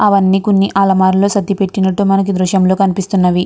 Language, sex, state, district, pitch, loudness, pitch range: Telugu, female, Andhra Pradesh, Guntur, 195 Hz, -13 LUFS, 190-195 Hz